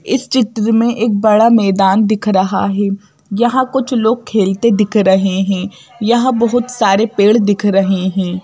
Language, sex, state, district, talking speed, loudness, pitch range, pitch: Hindi, female, Madhya Pradesh, Bhopal, 165 wpm, -13 LUFS, 195-235 Hz, 210 Hz